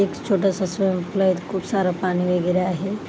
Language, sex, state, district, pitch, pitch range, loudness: Marathi, female, Maharashtra, Dhule, 190 Hz, 180-195 Hz, -22 LUFS